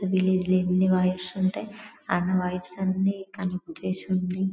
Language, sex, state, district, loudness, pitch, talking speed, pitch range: Telugu, female, Telangana, Karimnagar, -26 LUFS, 185 Hz, 170 wpm, 185-190 Hz